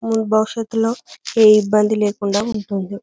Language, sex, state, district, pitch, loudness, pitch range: Telugu, female, Telangana, Karimnagar, 215 Hz, -17 LUFS, 205-225 Hz